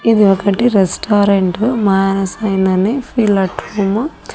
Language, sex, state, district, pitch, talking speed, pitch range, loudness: Telugu, female, Andhra Pradesh, Annamaya, 200 Hz, 140 wpm, 195-220 Hz, -14 LUFS